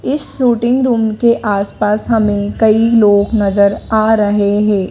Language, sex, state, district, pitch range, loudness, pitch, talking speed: Hindi, female, Madhya Pradesh, Dhar, 205-230 Hz, -13 LUFS, 215 Hz, 160 wpm